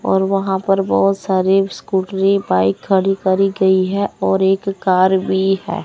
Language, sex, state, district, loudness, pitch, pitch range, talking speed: Hindi, male, Chandigarh, Chandigarh, -16 LUFS, 190 Hz, 190-195 Hz, 165 wpm